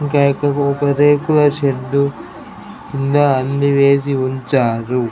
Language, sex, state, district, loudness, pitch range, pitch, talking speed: Telugu, male, Andhra Pradesh, Krishna, -15 LUFS, 135-145 Hz, 140 Hz, 80 wpm